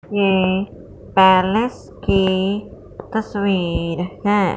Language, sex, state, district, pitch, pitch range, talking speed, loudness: Hindi, female, Punjab, Fazilka, 195 Hz, 185-205 Hz, 65 wpm, -18 LUFS